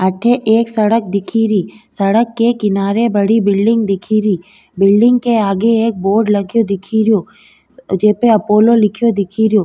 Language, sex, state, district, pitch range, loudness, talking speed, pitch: Rajasthani, female, Rajasthan, Nagaur, 200-230 Hz, -13 LUFS, 155 wpm, 215 Hz